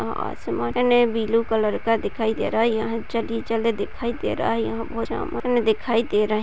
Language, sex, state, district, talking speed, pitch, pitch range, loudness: Hindi, female, Uttar Pradesh, Jalaun, 185 wpm, 225 Hz, 215-230 Hz, -23 LUFS